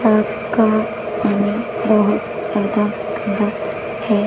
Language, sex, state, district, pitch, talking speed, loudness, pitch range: Hindi, female, Punjab, Fazilka, 210 Hz, 85 wpm, -19 LUFS, 210-215 Hz